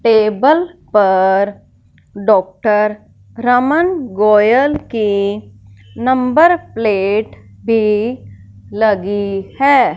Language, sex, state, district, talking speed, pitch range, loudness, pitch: Hindi, male, Punjab, Fazilka, 65 wpm, 195-250 Hz, -14 LUFS, 210 Hz